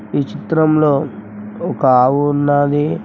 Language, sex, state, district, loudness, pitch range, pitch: Telugu, male, Telangana, Mahabubabad, -15 LUFS, 130-145 Hz, 145 Hz